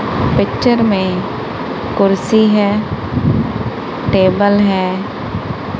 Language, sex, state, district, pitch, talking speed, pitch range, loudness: Hindi, female, Punjab, Kapurthala, 200 Hz, 60 wpm, 190-210 Hz, -15 LUFS